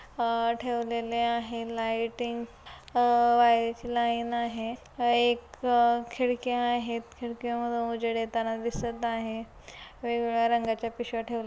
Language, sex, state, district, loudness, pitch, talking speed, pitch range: Marathi, female, Maharashtra, Solapur, -28 LUFS, 235 Hz, 105 wpm, 230-240 Hz